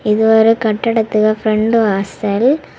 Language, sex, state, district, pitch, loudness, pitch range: Tamil, female, Tamil Nadu, Kanyakumari, 220 Hz, -14 LUFS, 215-225 Hz